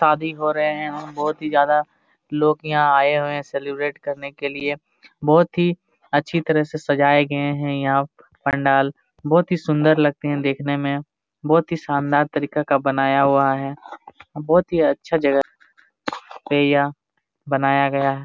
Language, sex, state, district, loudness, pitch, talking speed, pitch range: Hindi, male, Jharkhand, Jamtara, -20 LUFS, 145 Hz, 165 wpm, 140-155 Hz